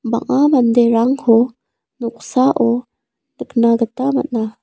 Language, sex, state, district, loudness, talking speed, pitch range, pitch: Garo, female, Meghalaya, South Garo Hills, -15 LUFS, 80 wpm, 230-260 Hz, 235 Hz